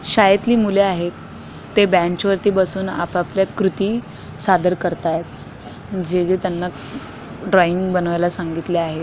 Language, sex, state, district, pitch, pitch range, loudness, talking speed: Marathi, female, Maharashtra, Chandrapur, 180 Hz, 170-195 Hz, -18 LUFS, 120 wpm